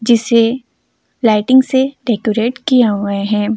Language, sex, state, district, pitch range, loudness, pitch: Hindi, female, Delhi, New Delhi, 215-255 Hz, -14 LUFS, 230 Hz